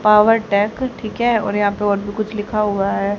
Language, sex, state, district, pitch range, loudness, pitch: Hindi, female, Haryana, Charkhi Dadri, 205-220 Hz, -18 LUFS, 210 Hz